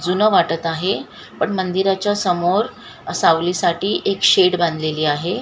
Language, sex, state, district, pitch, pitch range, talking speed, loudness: Marathi, female, Maharashtra, Mumbai Suburban, 180 Hz, 170-195 Hz, 135 wpm, -18 LUFS